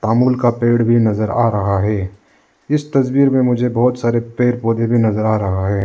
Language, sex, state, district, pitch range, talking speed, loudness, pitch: Hindi, male, Arunachal Pradesh, Lower Dibang Valley, 110-125 Hz, 215 wpm, -16 LUFS, 115 Hz